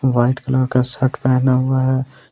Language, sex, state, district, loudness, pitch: Hindi, male, Jharkhand, Ranchi, -17 LUFS, 130 Hz